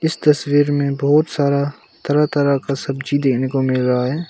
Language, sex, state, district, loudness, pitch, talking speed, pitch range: Hindi, male, Arunachal Pradesh, Longding, -18 LUFS, 140 Hz, 195 wpm, 135-145 Hz